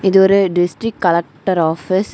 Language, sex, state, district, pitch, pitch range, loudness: Tamil, female, Tamil Nadu, Kanyakumari, 185 Hz, 170-195 Hz, -15 LUFS